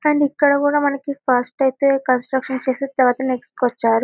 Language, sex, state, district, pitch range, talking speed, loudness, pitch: Telugu, female, Telangana, Karimnagar, 255-280 Hz, 105 wpm, -19 LUFS, 265 Hz